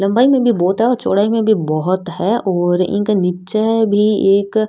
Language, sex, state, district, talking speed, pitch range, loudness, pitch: Rajasthani, female, Rajasthan, Nagaur, 215 wpm, 185-220 Hz, -15 LUFS, 205 Hz